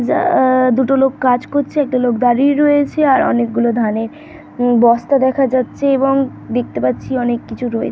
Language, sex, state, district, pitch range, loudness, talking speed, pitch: Bengali, female, West Bengal, North 24 Parganas, 240-275 Hz, -15 LUFS, 165 wpm, 255 Hz